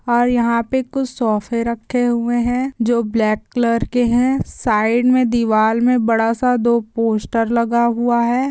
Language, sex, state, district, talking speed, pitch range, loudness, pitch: Hindi, female, Bihar, Kishanganj, 170 wpm, 230-245 Hz, -17 LUFS, 235 Hz